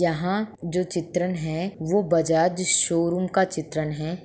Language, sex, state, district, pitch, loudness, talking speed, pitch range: Hindi, female, Jharkhand, Sahebganj, 175 Hz, -24 LUFS, 140 wpm, 165-185 Hz